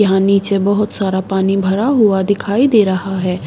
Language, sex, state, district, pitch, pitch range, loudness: Hindi, female, Bihar, Saharsa, 195 Hz, 190-205 Hz, -14 LUFS